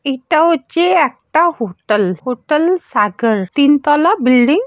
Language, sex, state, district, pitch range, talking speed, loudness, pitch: Bengali, female, West Bengal, Purulia, 230-325 Hz, 130 wpm, -14 LUFS, 285 Hz